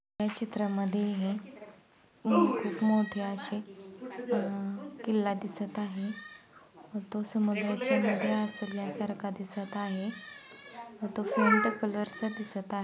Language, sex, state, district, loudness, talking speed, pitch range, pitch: Marathi, female, Maharashtra, Sindhudurg, -32 LUFS, 125 wpm, 200-215 Hz, 210 Hz